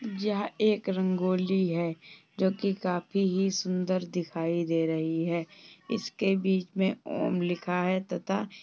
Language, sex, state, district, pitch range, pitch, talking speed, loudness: Hindi, female, Uttar Pradesh, Jalaun, 175-195 Hz, 185 Hz, 145 wpm, -29 LUFS